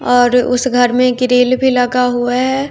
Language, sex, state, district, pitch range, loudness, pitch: Hindi, female, Bihar, West Champaran, 245-255 Hz, -13 LUFS, 250 Hz